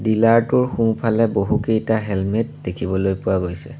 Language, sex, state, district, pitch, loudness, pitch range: Assamese, male, Assam, Sonitpur, 110 Hz, -19 LUFS, 95-115 Hz